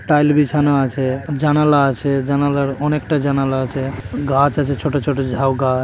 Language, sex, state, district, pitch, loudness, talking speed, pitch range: Bengali, male, West Bengal, Malda, 140 Hz, -17 LUFS, 145 wpm, 135-145 Hz